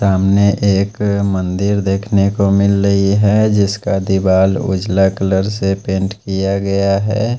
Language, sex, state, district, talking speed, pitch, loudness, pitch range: Hindi, male, Punjab, Pathankot, 140 wpm, 100 Hz, -15 LUFS, 95-100 Hz